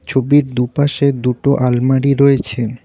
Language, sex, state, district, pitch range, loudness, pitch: Bengali, male, West Bengal, Cooch Behar, 125-140 Hz, -14 LUFS, 130 Hz